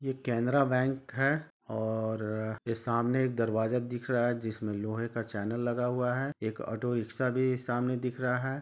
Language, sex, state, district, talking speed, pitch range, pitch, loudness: Hindi, male, Jharkhand, Sahebganj, 180 wpm, 110-130 Hz, 120 Hz, -32 LUFS